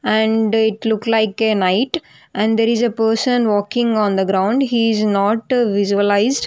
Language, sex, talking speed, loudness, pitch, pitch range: English, female, 175 wpm, -17 LUFS, 220 Hz, 205-230 Hz